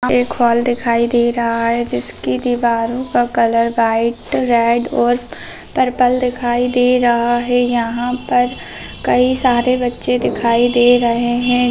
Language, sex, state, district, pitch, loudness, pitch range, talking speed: Hindi, female, Bihar, Begusarai, 240 Hz, -15 LUFS, 235-245 Hz, 140 wpm